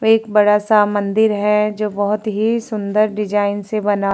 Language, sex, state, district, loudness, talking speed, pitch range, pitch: Hindi, female, Uttar Pradesh, Jalaun, -17 LUFS, 190 wpm, 205-215 Hz, 210 Hz